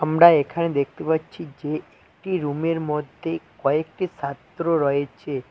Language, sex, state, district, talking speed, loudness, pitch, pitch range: Bengali, male, West Bengal, Cooch Behar, 120 wpm, -23 LUFS, 155 Hz, 140-165 Hz